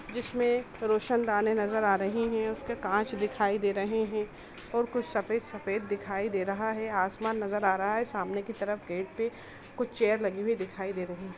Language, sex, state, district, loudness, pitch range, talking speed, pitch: Hindi, female, Chhattisgarh, Rajnandgaon, -31 LUFS, 200-225 Hz, 200 wpm, 210 Hz